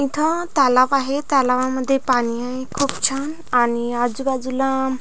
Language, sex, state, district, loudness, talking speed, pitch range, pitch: Marathi, female, Maharashtra, Pune, -19 LUFS, 120 wpm, 250-275 Hz, 265 Hz